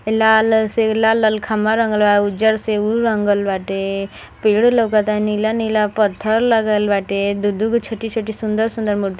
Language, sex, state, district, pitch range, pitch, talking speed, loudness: Bhojpuri, female, Uttar Pradesh, Gorakhpur, 205-220 Hz, 215 Hz, 185 wpm, -17 LUFS